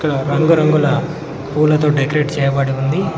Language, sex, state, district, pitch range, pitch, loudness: Telugu, male, Telangana, Mahabubabad, 140-155 Hz, 150 Hz, -15 LUFS